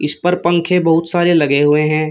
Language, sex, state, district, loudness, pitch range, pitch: Hindi, male, Uttar Pradesh, Shamli, -14 LUFS, 150-175 Hz, 165 Hz